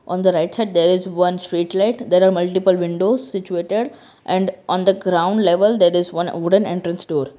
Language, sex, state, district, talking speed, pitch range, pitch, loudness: English, female, Gujarat, Valsad, 205 wpm, 175-195 Hz, 180 Hz, -18 LUFS